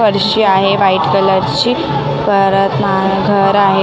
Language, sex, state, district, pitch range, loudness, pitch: Marathi, female, Maharashtra, Mumbai Suburban, 190-200 Hz, -12 LUFS, 195 Hz